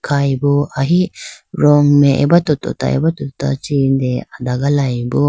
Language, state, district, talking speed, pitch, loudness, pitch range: Idu Mishmi, Arunachal Pradesh, Lower Dibang Valley, 125 wpm, 140 Hz, -15 LUFS, 135-150 Hz